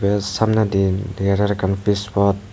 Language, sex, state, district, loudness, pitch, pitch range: Chakma, male, Tripura, Dhalai, -19 LUFS, 100 Hz, 100-105 Hz